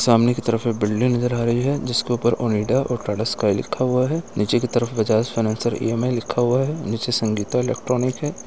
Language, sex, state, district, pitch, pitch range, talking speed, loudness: Hindi, male, Uttar Pradesh, Etah, 120 Hz, 115-125 Hz, 220 wpm, -21 LUFS